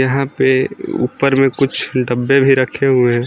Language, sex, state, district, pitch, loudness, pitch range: Hindi, male, Jharkhand, Garhwa, 130 Hz, -14 LUFS, 125-135 Hz